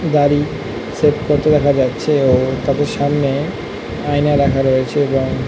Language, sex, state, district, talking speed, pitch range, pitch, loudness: Bengali, male, West Bengal, North 24 Parganas, 130 wpm, 135-145 Hz, 145 Hz, -16 LUFS